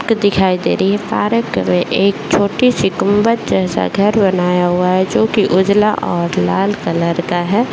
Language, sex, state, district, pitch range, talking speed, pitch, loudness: Hindi, female, Bihar, Bhagalpur, 180-210 Hz, 170 wpm, 195 Hz, -14 LUFS